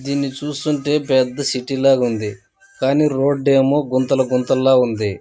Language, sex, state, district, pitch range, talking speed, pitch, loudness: Telugu, male, Andhra Pradesh, Chittoor, 130-145 Hz, 125 wpm, 135 Hz, -17 LUFS